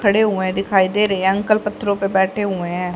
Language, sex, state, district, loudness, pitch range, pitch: Hindi, male, Haryana, Rohtak, -18 LUFS, 190-205 Hz, 195 Hz